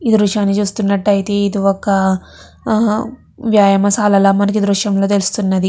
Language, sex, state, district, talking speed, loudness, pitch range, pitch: Telugu, female, Andhra Pradesh, Chittoor, 115 wpm, -14 LUFS, 195-210 Hz, 200 Hz